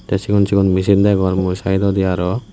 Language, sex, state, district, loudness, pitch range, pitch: Chakma, male, Tripura, West Tripura, -16 LUFS, 95-100 Hz, 95 Hz